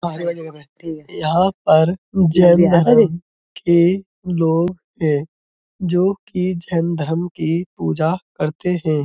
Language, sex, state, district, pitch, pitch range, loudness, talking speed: Hindi, male, Uttar Pradesh, Budaun, 170 Hz, 160-180 Hz, -17 LUFS, 100 wpm